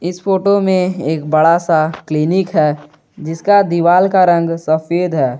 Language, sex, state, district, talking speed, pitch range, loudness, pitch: Hindi, male, Jharkhand, Garhwa, 155 wpm, 155-185 Hz, -14 LUFS, 170 Hz